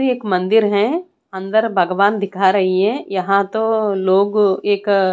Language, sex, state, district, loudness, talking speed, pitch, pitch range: Hindi, female, Odisha, Khordha, -16 LUFS, 165 wpm, 200 Hz, 190-215 Hz